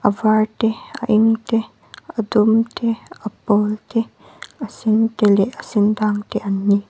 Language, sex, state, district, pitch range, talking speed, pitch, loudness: Mizo, female, Mizoram, Aizawl, 210-225 Hz, 190 wpm, 215 Hz, -19 LUFS